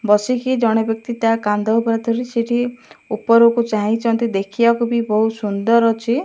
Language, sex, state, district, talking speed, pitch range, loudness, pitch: Odia, male, Odisha, Malkangiri, 135 wpm, 220-235 Hz, -17 LUFS, 230 Hz